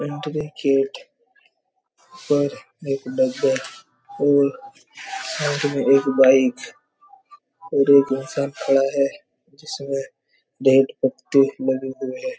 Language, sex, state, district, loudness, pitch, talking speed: Hindi, male, Chhattisgarh, Raigarh, -20 LUFS, 140 Hz, 95 wpm